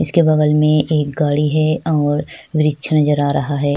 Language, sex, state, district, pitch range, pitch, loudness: Hindi, female, Chhattisgarh, Sukma, 145-155 Hz, 150 Hz, -16 LUFS